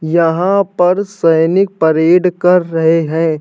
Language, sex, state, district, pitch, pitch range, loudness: Hindi, male, Uttar Pradesh, Hamirpur, 170 Hz, 165-180 Hz, -12 LUFS